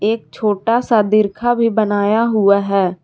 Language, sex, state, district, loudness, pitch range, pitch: Hindi, female, Jharkhand, Garhwa, -15 LUFS, 200-225 Hz, 215 Hz